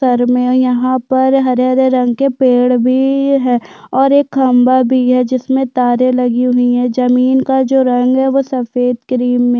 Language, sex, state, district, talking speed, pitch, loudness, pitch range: Hindi, female, Chhattisgarh, Sukma, 185 wpm, 255 Hz, -12 LUFS, 250-265 Hz